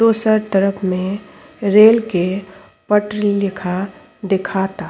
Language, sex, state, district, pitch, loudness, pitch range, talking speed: Bhojpuri, female, Uttar Pradesh, Ghazipur, 200 Hz, -17 LUFS, 190-210 Hz, 110 wpm